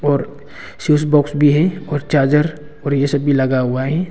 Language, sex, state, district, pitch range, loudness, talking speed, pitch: Hindi, male, Arunachal Pradesh, Longding, 140-150 Hz, -16 LUFS, 205 wpm, 145 Hz